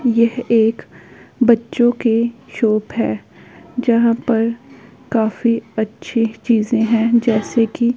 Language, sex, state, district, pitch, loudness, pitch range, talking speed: Hindi, female, Punjab, Pathankot, 230 Hz, -17 LUFS, 225-235 Hz, 105 wpm